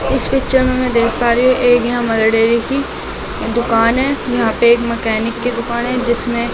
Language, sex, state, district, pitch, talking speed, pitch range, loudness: Hindi, female, Delhi, New Delhi, 235 Hz, 200 wpm, 235-250 Hz, -15 LUFS